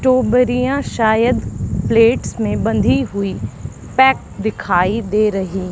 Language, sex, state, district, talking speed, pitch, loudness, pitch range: Hindi, female, Haryana, Charkhi Dadri, 105 wpm, 220 Hz, -16 LUFS, 190-250 Hz